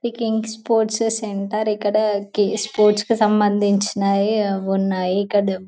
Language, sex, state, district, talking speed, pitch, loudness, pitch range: Telugu, female, Telangana, Karimnagar, 105 wpm, 210 Hz, -19 LUFS, 200-220 Hz